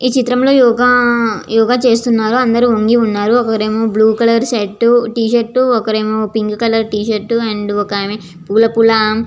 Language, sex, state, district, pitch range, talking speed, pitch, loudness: Telugu, female, Andhra Pradesh, Visakhapatnam, 215-240 Hz, 145 wpm, 225 Hz, -13 LUFS